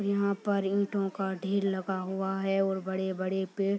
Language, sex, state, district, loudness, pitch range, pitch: Hindi, female, Bihar, Purnia, -31 LUFS, 190-200 Hz, 195 Hz